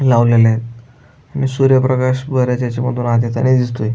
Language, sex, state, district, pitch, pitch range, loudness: Marathi, male, Maharashtra, Aurangabad, 125 Hz, 120-130 Hz, -15 LUFS